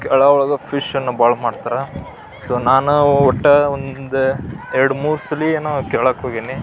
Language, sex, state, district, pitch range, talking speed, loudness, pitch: Kannada, male, Karnataka, Belgaum, 130-145 Hz, 135 wpm, -16 LUFS, 135 Hz